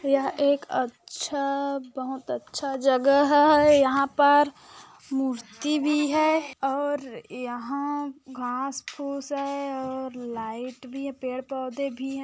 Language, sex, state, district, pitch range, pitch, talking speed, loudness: Hindi, female, Chhattisgarh, Korba, 260-285 Hz, 275 Hz, 115 wpm, -25 LUFS